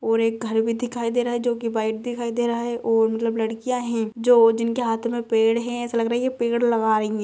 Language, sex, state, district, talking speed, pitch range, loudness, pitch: Hindi, female, Bihar, Lakhisarai, 265 wpm, 225-240 Hz, -22 LUFS, 230 Hz